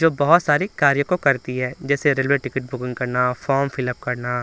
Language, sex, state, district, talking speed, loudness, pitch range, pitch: Hindi, male, Bihar, Patna, 205 wpm, -20 LUFS, 125-145 Hz, 135 Hz